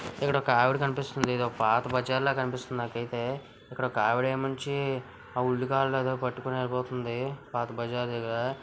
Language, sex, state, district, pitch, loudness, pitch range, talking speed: Telugu, male, Andhra Pradesh, Visakhapatnam, 125 Hz, -29 LUFS, 120-135 Hz, 145 wpm